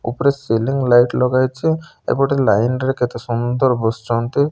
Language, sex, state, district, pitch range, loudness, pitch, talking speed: Odia, male, Odisha, Malkangiri, 120-135 Hz, -17 LUFS, 125 Hz, 135 wpm